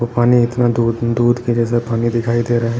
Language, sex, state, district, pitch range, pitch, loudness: Hindi, male, Maharashtra, Sindhudurg, 115-120 Hz, 120 Hz, -16 LUFS